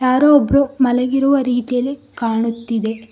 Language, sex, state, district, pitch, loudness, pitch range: Kannada, female, Karnataka, Koppal, 250 Hz, -16 LUFS, 230-270 Hz